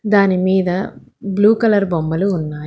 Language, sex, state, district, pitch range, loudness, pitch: Telugu, female, Telangana, Hyderabad, 180-205 Hz, -16 LUFS, 195 Hz